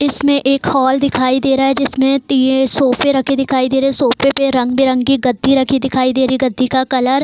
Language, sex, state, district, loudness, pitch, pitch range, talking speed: Hindi, female, Bihar, Darbhanga, -14 LUFS, 265 Hz, 260-275 Hz, 230 wpm